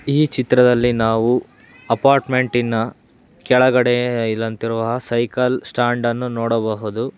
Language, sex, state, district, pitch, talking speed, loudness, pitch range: Kannada, male, Karnataka, Bangalore, 120 Hz, 75 wpm, -18 LUFS, 115-125 Hz